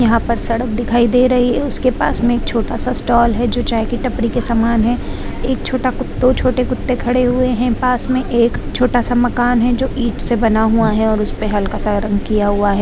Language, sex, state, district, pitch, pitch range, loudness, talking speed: Hindi, female, Bihar, Purnia, 240 Hz, 230-250 Hz, -16 LUFS, 240 wpm